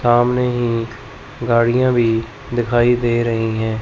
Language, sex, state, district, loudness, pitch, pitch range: Hindi, male, Chandigarh, Chandigarh, -17 LUFS, 120 Hz, 115-120 Hz